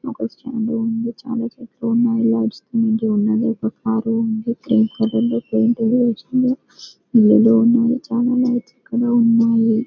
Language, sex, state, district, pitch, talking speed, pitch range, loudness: Telugu, female, Telangana, Karimnagar, 230 Hz, 150 wpm, 225-240 Hz, -18 LUFS